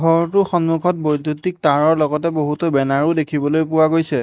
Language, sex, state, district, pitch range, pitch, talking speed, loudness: Assamese, male, Assam, Hailakandi, 150-165 Hz, 160 Hz, 155 wpm, -17 LUFS